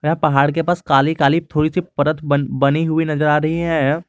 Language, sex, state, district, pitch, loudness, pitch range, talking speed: Hindi, male, Jharkhand, Garhwa, 155 Hz, -17 LUFS, 145-160 Hz, 235 wpm